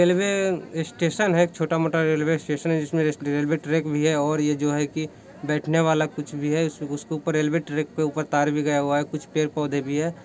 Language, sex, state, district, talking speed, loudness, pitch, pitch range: Hindi, male, Bihar, East Champaran, 140 wpm, -24 LUFS, 155 Hz, 150-165 Hz